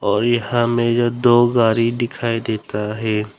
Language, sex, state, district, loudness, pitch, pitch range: Hindi, male, Arunachal Pradesh, Longding, -18 LUFS, 115 Hz, 110-120 Hz